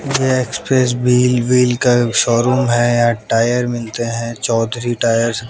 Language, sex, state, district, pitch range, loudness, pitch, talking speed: Hindi, male, Haryana, Jhajjar, 115-125 Hz, -15 LUFS, 120 Hz, 155 wpm